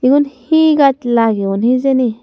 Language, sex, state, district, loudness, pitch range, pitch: Chakma, female, Tripura, Dhalai, -13 LUFS, 230-280 Hz, 255 Hz